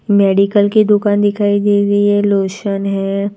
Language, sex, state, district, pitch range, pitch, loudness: Hindi, female, Gujarat, Gandhinagar, 200-205 Hz, 205 Hz, -13 LUFS